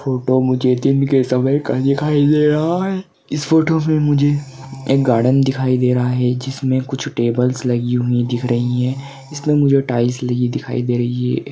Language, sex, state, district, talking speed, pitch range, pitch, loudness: Hindi, male, Maharashtra, Nagpur, 185 wpm, 125-145 Hz, 130 Hz, -17 LUFS